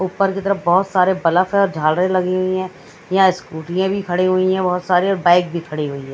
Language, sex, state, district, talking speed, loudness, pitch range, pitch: Hindi, female, Haryana, Rohtak, 225 wpm, -17 LUFS, 175-190 Hz, 185 Hz